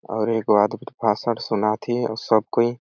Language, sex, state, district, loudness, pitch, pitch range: Awadhi, male, Chhattisgarh, Balrampur, -22 LUFS, 110 Hz, 105-115 Hz